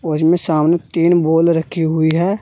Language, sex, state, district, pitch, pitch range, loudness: Hindi, male, Uttar Pradesh, Saharanpur, 165 Hz, 160-170 Hz, -15 LUFS